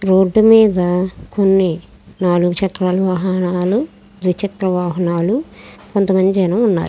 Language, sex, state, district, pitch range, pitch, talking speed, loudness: Telugu, female, Andhra Pradesh, Krishna, 180-200 Hz, 185 Hz, 80 wpm, -16 LUFS